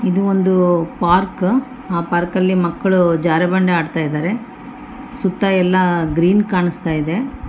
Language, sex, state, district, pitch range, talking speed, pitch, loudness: Kannada, female, Karnataka, Bellary, 175-195 Hz, 110 wpm, 185 Hz, -16 LUFS